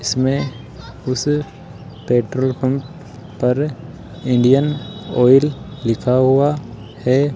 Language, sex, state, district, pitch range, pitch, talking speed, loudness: Hindi, male, Rajasthan, Jaipur, 125-145 Hz, 130 Hz, 80 wpm, -18 LUFS